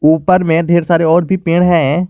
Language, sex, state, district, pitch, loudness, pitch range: Hindi, male, Jharkhand, Garhwa, 170 Hz, -12 LUFS, 165-175 Hz